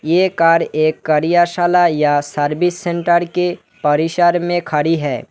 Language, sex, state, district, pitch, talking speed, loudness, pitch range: Hindi, male, West Bengal, Alipurduar, 170 Hz, 135 wpm, -15 LUFS, 155-175 Hz